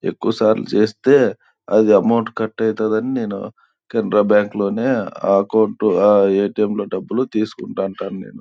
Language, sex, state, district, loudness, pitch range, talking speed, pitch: Telugu, male, Andhra Pradesh, Anantapur, -17 LUFS, 105-110 Hz, 145 wpm, 110 Hz